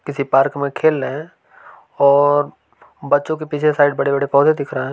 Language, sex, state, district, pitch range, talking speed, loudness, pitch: Hindi, male, Bihar, East Champaran, 140-150 Hz, 205 wpm, -16 LUFS, 145 Hz